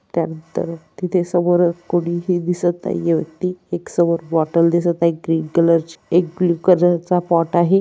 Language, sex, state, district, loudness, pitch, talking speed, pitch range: Marathi, female, Maharashtra, Dhule, -18 LUFS, 170 Hz, 155 wpm, 165-175 Hz